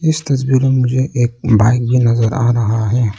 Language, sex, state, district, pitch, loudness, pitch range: Hindi, male, Arunachal Pradesh, Lower Dibang Valley, 120 Hz, -14 LUFS, 115-130 Hz